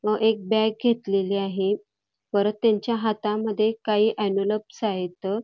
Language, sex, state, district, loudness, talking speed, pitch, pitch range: Marathi, female, Karnataka, Belgaum, -24 LUFS, 120 wpm, 210 Hz, 195-220 Hz